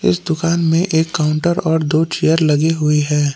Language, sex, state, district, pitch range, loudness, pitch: Hindi, male, Jharkhand, Palamu, 150-165 Hz, -16 LUFS, 160 Hz